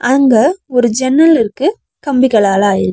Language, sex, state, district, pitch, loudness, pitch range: Tamil, female, Tamil Nadu, Nilgiris, 260 Hz, -12 LUFS, 220-290 Hz